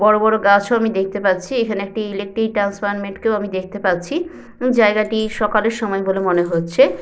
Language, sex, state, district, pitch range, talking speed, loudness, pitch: Bengali, female, West Bengal, Jhargram, 195-220 Hz, 190 wpm, -18 LUFS, 205 Hz